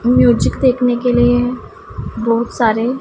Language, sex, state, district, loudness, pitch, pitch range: Hindi, female, Punjab, Pathankot, -14 LUFS, 245 Hz, 235-250 Hz